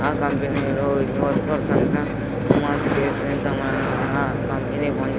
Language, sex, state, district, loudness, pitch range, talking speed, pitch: Telugu, male, Andhra Pradesh, Sri Satya Sai, -22 LUFS, 135-140 Hz, 115 wpm, 140 Hz